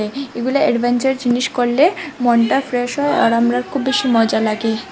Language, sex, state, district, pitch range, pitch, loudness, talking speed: Bengali, female, Assam, Hailakandi, 235-270 Hz, 245 Hz, -16 LUFS, 160 wpm